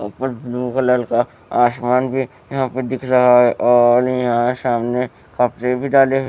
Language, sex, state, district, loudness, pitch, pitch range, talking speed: Hindi, male, Bihar, West Champaran, -17 LUFS, 125 Hz, 120-130 Hz, 170 wpm